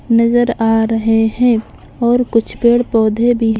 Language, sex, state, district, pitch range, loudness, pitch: Hindi, female, Maharashtra, Mumbai Suburban, 225-240 Hz, -14 LUFS, 230 Hz